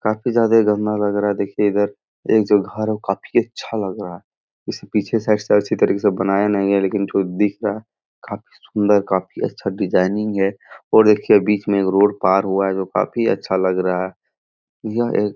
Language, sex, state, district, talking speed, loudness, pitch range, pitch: Hindi, male, Bihar, Supaul, 225 wpm, -18 LUFS, 95-105 Hz, 105 Hz